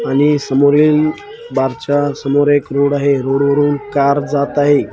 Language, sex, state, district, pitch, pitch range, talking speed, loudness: Marathi, male, Maharashtra, Washim, 145 Hz, 140-145 Hz, 160 wpm, -14 LUFS